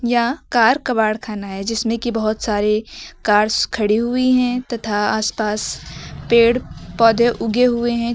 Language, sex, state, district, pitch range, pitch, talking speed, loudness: Hindi, female, Uttar Pradesh, Lucknow, 215-240 Hz, 230 Hz, 145 wpm, -18 LUFS